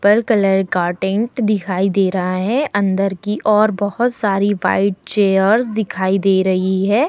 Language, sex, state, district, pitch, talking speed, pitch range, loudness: Hindi, female, Uttar Pradesh, Muzaffarnagar, 200 Hz, 160 wpm, 190-210 Hz, -16 LUFS